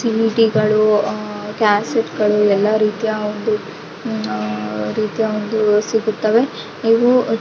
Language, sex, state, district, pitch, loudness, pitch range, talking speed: Kannada, female, Karnataka, Raichur, 215 Hz, -17 LUFS, 210-225 Hz, 105 wpm